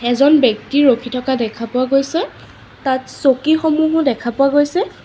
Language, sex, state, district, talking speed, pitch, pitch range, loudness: Assamese, female, Assam, Sonitpur, 140 wpm, 270 Hz, 250-300 Hz, -16 LUFS